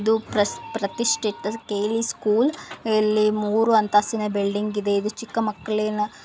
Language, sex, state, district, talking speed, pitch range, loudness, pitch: Kannada, female, Karnataka, Belgaum, 105 wpm, 210-225 Hz, -23 LUFS, 215 Hz